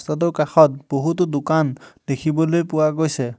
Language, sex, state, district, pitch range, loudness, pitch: Assamese, male, Assam, Hailakandi, 140-160 Hz, -19 LUFS, 155 Hz